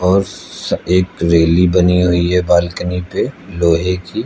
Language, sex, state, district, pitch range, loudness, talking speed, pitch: Hindi, male, Uttar Pradesh, Lucknow, 85-90 Hz, -15 LUFS, 140 wpm, 90 Hz